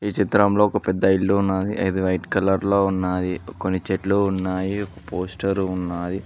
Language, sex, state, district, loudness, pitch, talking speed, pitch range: Telugu, male, Telangana, Mahabubabad, -22 LUFS, 95 Hz, 155 wpm, 95-100 Hz